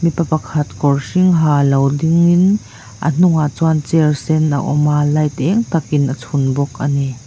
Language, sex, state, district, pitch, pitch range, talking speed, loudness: Mizo, female, Mizoram, Aizawl, 150 Hz, 140-165 Hz, 200 wpm, -15 LUFS